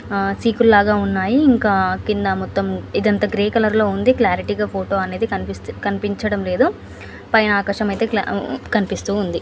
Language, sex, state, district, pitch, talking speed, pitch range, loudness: Telugu, female, Andhra Pradesh, Anantapur, 205 Hz, 100 wpm, 195-215 Hz, -18 LUFS